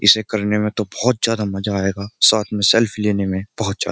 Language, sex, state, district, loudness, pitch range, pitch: Hindi, male, Uttar Pradesh, Jyotiba Phule Nagar, -18 LUFS, 100-110 Hz, 105 Hz